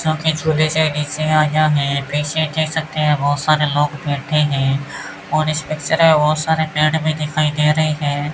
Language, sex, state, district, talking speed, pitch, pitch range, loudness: Hindi, male, Rajasthan, Bikaner, 170 wpm, 155 Hz, 150-155 Hz, -17 LUFS